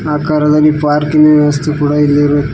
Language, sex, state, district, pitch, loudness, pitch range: Kannada, male, Karnataka, Koppal, 150 Hz, -11 LUFS, 145-150 Hz